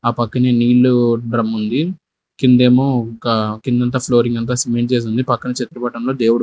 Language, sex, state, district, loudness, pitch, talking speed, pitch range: Telugu, male, Andhra Pradesh, Sri Satya Sai, -16 LUFS, 120 Hz, 150 wpm, 115-125 Hz